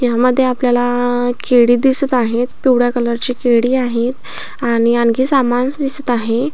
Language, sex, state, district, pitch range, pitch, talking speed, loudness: Marathi, female, Maharashtra, Aurangabad, 240-255 Hz, 245 Hz, 135 wpm, -14 LUFS